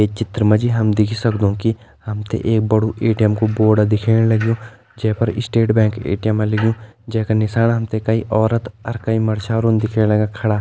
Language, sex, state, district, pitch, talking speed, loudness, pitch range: Kumaoni, male, Uttarakhand, Tehri Garhwal, 110 Hz, 180 wpm, -18 LUFS, 105-115 Hz